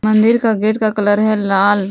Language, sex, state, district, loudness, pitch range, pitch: Hindi, female, Jharkhand, Palamu, -14 LUFS, 205-215 Hz, 215 Hz